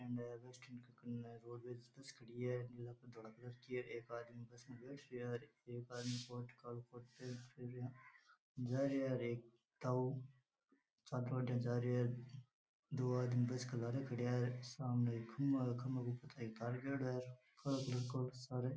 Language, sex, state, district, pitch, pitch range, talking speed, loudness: Rajasthani, male, Rajasthan, Nagaur, 125 Hz, 120-125 Hz, 45 wpm, -45 LUFS